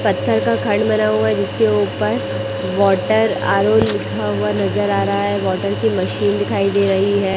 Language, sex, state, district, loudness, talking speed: Hindi, female, Chhattisgarh, Raipur, -17 LUFS, 185 wpm